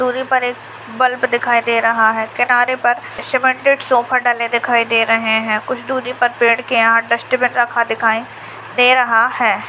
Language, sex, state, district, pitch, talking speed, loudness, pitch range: Hindi, female, Bihar, Madhepura, 240 Hz, 180 wpm, -15 LUFS, 230-255 Hz